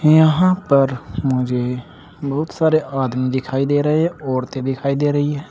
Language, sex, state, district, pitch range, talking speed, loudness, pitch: Hindi, male, Uttar Pradesh, Saharanpur, 130-155 Hz, 165 wpm, -18 LUFS, 140 Hz